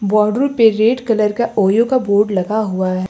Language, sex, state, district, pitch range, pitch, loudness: Hindi, female, Uttar Pradesh, Lucknow, 200-230 Hz, 215 Hz, -15 LUFS